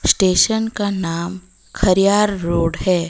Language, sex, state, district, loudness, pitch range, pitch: Hindi, female, Odisha, Malkangiri, -17 LUFS, 170-205 Hz, 185 Hz